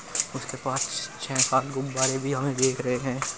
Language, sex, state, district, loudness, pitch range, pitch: Hindi, male, Uttar Pradesh, Muzaffarnagar, -26 LUFS, 130-135 Hz, 130 Hz